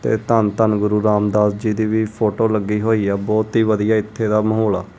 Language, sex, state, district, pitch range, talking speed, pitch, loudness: Punjabi, male, Punjab, Kapurthala, 105-110 Hz, 230 wpm, 110 Hz, -18 LUFS